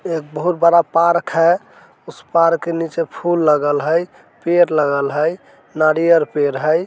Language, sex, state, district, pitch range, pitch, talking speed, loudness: Bajjika, male, Bihar, Vaishali, 150-170 Hz, 165 Hz, 155 wpm, -16 LUFS